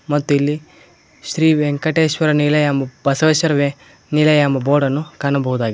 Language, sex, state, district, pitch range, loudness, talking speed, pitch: Kannada, male, Karnataka, Koppal, 140-155 Hz, -16 LUFS, 125 wpm, 145 Hz